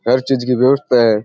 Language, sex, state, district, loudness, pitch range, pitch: Rajasthani, male, Rajasthan, Churu, -14 LUFS, 120-135 Hz, 125 Hz